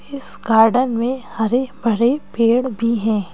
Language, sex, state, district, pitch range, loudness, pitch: Hindi, female, Madhya Pradesh, Bhopal, 225-255 Hz, -17 LUFS, 235 Hz